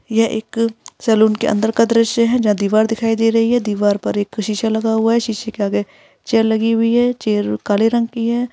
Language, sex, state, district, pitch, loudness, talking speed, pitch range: Hindi, female, Uttar Pradesh, Etah, 225 Hz, -17 LUFS, 245 wpm, 215-230 Hz